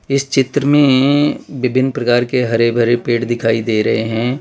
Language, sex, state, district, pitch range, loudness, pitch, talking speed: Hindi, male, Gujarat, Valsad, 115-135 Hz, -15 LUFS, 125 Hz, 175 wpm